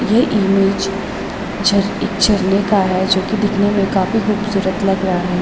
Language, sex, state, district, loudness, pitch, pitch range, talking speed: Hindi, female, Uttarakhand, Tehri Garhwal, -16 LUFS, 200 Hz, 190-210 Hz, 165 wpm